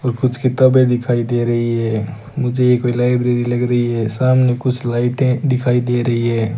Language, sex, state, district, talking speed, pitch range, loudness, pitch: Hindi, male, Rajasthan, Bikaner, 190 wpm, 120-125 Hz, -16 LUFS, 125 Hz